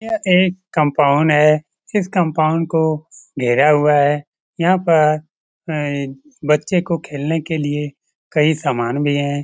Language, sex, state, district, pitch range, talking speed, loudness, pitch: Hindi, male, Bihar, Lakhisarai, 145-170 Hz, 145 wpm, -17 LUFS, 155 Hz